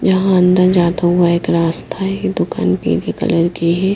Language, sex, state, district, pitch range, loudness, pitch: Hindi, female, Haryana, Jhajjar, 170-190 Hz, -15 LUFS, 180 Hz